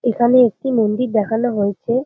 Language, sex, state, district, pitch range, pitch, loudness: Bengali, female, West Bengal, Jhargram, 220-250 Hz, 235 Hz, -17 LUFS